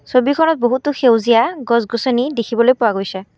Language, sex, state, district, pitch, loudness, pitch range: Assamese, female, Assam, Kamrup Metropolitan, 240 Hz, -15 LUFS, 230-260 Hz